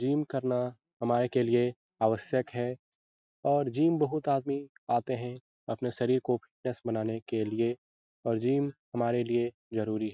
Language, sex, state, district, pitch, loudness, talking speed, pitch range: Hindi, male, Bihar, Lakhisarai, 125 Hz, -31 LUFS, 155 wpm, 115-135 Hz